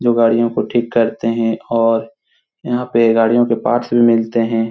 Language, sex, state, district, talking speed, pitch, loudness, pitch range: Hindi, male, Bihar, Supaul, 205 wpm, 115 Hz, -15 LUFS, 115-120 Hz